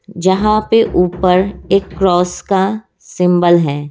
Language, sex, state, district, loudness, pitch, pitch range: Hindi, female, Bihar, Muzaffarpur, -14 LUFS, 185 Hz, 180-200 Hz